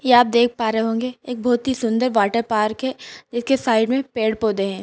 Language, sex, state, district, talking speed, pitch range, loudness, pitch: Hindi, female, Bihar, Purnia, 210 wpm, 220-250 Hz, -20 LUFS, 235 Hz